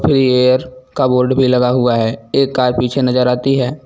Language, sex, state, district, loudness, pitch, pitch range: Hindi, male, Uttar Pradesh, Lucknow, -14 LUFS, 125 Hz, 125-130 Hz